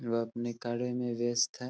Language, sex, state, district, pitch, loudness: Hindi, male, Bihar, Araria, 120 Hz, -33 LUFS